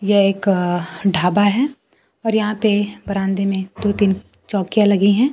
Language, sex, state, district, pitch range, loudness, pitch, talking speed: Hindi, female, Bihar, Kaimur, 195-210 Hz, -18 LUFS, 200 Hz, 160 wpm